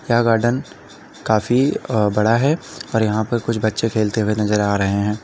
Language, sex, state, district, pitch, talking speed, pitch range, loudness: Hindi, male, Uttar Pradesh, Lalitpur, 110 Hz, 185 wpm, 105-120 Hz, -19 LUFS